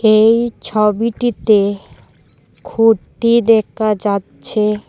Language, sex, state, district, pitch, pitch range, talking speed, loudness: Bengali, female, Assam, Hailakandi, 215 Hz, 210-230 Hz, 60 wpm, -15 LUFS